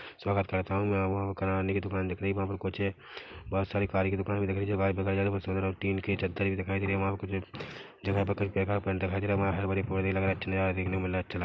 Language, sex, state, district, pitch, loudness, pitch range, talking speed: Hindi, male, Chhattisgarh, Rajnandgaon, 95 Hz, -31 LUFS, 95-100 Hz, 335 wpm